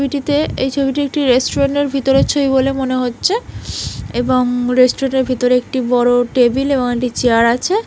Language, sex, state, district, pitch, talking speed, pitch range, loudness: Bengali, female, West Bengal, Malda, 260 Hz, 170 wpm, 245-280 Hz, -15 LUFS